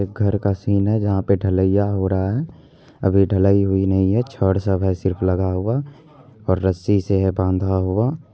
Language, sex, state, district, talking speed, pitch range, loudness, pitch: Hindi, male, Bihar, Purnia, 210 wpm, 95-105 Hz, -19 LUFS, 95 Hz